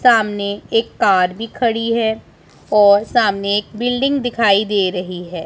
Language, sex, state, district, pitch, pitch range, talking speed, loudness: Hindi, male, Punjab, Pathankot, 210 Hz, 200-230 Hz, 155 wpm, -16 LUFS